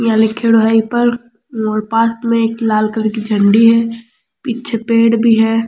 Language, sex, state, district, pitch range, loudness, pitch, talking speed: Rajasthani, female, Rajasthan, Churu, 220-230 Hz, -13 LUFS, 230 Hz, 190 wpm